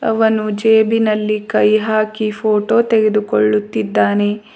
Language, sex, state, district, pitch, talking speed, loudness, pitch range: Kannada, female, Karnataka, Bidar, 215 Hz, 80 wpm, -15 LUFS, 210-220 Hz